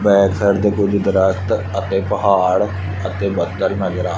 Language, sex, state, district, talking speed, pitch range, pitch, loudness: Punjabi, male, Punjab, Fazilka, 160 wpm, 95-100 Hz, 95 Hz, -17 LUFS